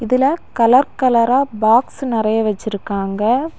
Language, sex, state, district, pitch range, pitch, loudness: Tamil, female, Tamil Nadu, Kanyakumari, 215-260 Hz, 230 Hz, -16 LUFS